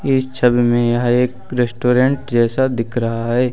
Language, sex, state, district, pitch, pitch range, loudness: Hindi, male, Uttar Pradesh, Lucknow, 125 Hz, 120-130 Hz, -17 LUFS